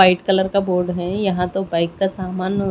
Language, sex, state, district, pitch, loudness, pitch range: Hindi, female, Odisha, Khordha, 185 Hz, -20 LUFS, 180-195 Hz